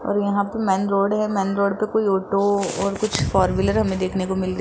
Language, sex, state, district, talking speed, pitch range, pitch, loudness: Hindi, female, Rajasthan, Jaipur, 270 wpm, 190-205 Hz, 200 Hz, -21 LUFS